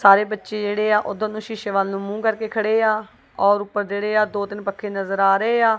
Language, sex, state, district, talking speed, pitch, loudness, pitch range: Punjabi, female, Punjab, Kapurthala, 230 wpm, 210 Hz, -21 LUFS, 200-215 Hz